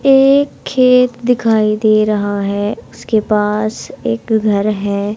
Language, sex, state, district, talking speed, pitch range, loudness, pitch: Hindi, male, Haryana, Charkhi Dadri, 130 wpm, 210-245 Hz, -14 LUFS, 215 Hz